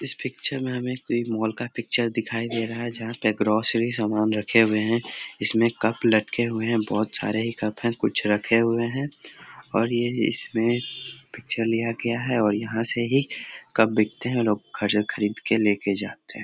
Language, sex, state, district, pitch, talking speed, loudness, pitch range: Hindi, male, Bihar, Samastipur, 115 Hz, 205 wpm, -24 LUFS, 110-120 Hz